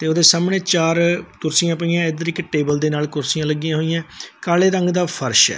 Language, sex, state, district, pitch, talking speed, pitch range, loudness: Punjabi, male, Punjab, Fazilka, 165 Hz, 205 wpm, 155-175 Hz, -18 LUFS